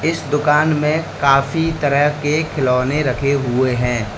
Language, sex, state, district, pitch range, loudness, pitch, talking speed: Hindi, male, Uttar Pradesh, Lalitpur, 130-150 Hz, -17 LUFS, 145 Hz, 145 wpm